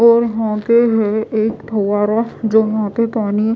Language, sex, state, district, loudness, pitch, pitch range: Hindi, female, Odisha, Malkangiri, -16 LUFS, 220 Hz, 215-230 Hz